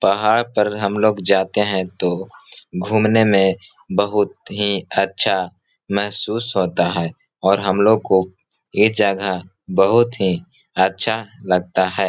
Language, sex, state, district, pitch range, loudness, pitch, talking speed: Hindi, male, Bihar, Gaya, 95-105 Hz, -18 LUFS, 100 Hz, 125 wpm